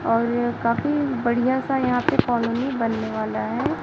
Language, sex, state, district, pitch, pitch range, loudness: Hindi, female, Chhattisgarh, Raipur, 240 Hz, 230-260 Hz, -22 LUFS